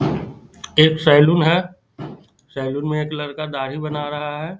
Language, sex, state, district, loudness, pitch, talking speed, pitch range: Hindi, male, Bihar, Saharsa, -19 LUFS, 150 Hz, 145 wpm, 145-155 Hz